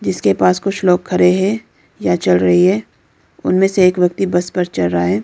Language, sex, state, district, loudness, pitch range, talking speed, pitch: Hindi, female, Arunachal Pradesh, Lower Dibang Valley, -15 LUFS, 140-190 Hz, 215 wpm, 180 Hz